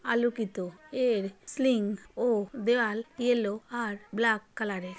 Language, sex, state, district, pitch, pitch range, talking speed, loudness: Bengali, female, West Bengal, Paschim Medinipur, 225 Hz, 205-240 Hz, 120 wpm, -30 LUFS